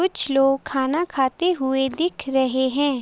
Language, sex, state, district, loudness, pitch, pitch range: Hindi, female, Himachal Pradesh, Shimla, -21 LUFS, 270 Hz, 265-310 Hz